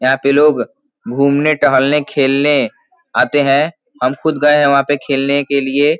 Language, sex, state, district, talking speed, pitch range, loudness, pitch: Hindi, male, Uttar Pradesh, Gorakhpur, 180 wpm, 135-150 Hz, -13 LUFS, 140 Hz